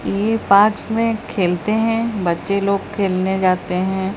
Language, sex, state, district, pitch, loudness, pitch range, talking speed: Hindi, female, Odisha, Sambalpur, 200 Hz, -18 LUFS, 185-220 Hz, 145 wpm